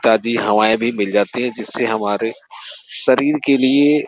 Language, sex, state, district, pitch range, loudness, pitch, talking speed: Hindi, male, Uttar Pradesh, Gorakhpur, 110-130 Hz, -17 LUFS, 115 Hz, 175 wpm